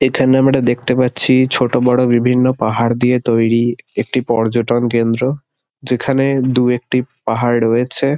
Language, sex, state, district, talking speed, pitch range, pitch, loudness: Bengali, male, West Bengal, Kolkata, 115 wpm, 120-130 Hz, 125 Hz, -15 LUFS